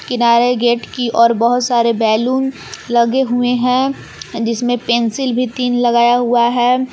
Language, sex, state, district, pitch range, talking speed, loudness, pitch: Hindi, female, Jharkhand, Palamu, 235-250 Hz, 145 wpm, -14 LUFS, 245 Hz